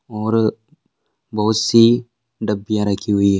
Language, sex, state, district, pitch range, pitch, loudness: Hindi, male, Bihar, Vaishali, 105-120 Hz, 110 Hz, -17 LUFS